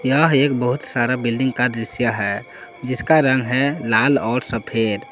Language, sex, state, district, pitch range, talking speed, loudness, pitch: Hindi, male, Jharkhand, Palamu, 115-130 Hz, 165 wpm, -19 LUFS, 125 Hz